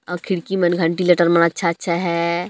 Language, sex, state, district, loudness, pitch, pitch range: Chhattisgarhi, male, Chhattisgarh, Jashpur, -18 LUFS, 170 Hz, 170-180 Hz